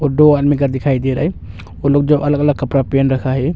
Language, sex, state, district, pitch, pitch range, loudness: Hindi, male, Arunachal Pradesh, Longding, 140 Hz, 135-145 Hz, -15 LUFS